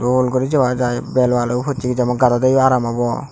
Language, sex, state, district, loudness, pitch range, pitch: Chakma, male, Tripura, Unakoti, -17 LUFS, 125-130 Hz, 125 Hz